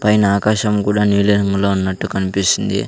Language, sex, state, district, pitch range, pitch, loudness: Telugu, male, Andhra Pradesh, Sri Satya Sai, 100-105 Hz, 100 Hz, -16 LUFS